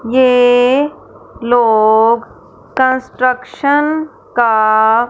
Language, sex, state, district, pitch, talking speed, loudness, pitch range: Hindi, female, Punjab, Fazilka, 245 Hz, 45 wpm, -12 LUFS, 230-260 Hz